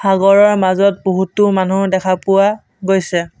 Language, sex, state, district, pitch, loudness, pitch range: Assamese, male, Assam, Sonitpur, 195 Hz, -14 LUFS, 185-200 Hz